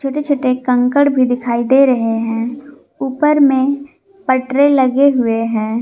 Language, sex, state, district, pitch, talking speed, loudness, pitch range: Hindi, female, Jharkhand, Garhwa, 260 Hz, 145 wpm, -14 LUFS, 245-280 Hz